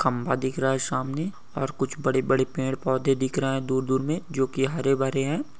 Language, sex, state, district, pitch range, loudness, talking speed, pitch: Hindi, male, Maharashtra, Nagpur, 130-140 Hz, -26 LUFS, 205 wpm, 135 Hz